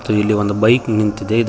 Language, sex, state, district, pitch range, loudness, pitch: Kannada, male, Karnataka, Koppal, 105-115 Hz, -16 LUFS, 105 Hz